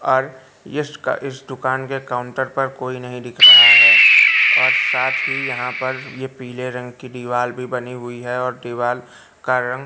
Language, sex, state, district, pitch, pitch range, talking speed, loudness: Hindi, male, Madhya Pradesh, Katni, 125 Hz, 125-130 Hz, 185 wpm, -13 LUFS